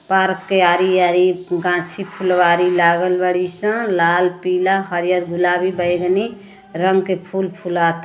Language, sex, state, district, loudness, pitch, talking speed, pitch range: Bhojpuri, female, Uttar Pradesh, Ghazipur, -17 LUFS, 180 Hz, 120 wpm, 175-190 Hz